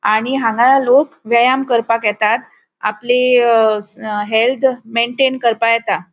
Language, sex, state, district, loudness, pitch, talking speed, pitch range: Konkani, female, Goa, North and South Goa, -15 LUFS, 235 Hz, 115 wpm, 220-255 Hz